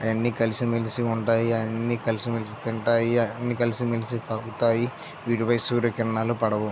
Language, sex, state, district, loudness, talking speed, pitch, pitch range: Telugu, male, Andhra Pradesh, Visakhapatnam, -25 LUFS, 135 wpm, 115 Hz, 115-120 Hz